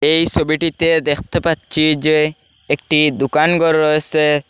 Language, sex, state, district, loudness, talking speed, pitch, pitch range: Bengali, male, Assam, Hailakandi, -15 LUFS, 120 wpm, 155 Hz, 150-160 Hz